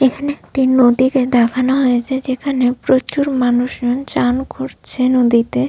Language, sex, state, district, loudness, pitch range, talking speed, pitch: Bengali, female, West Bengal, Malda, -15 LUFS, 245-265 Hz, 115 wpm, 255 Hz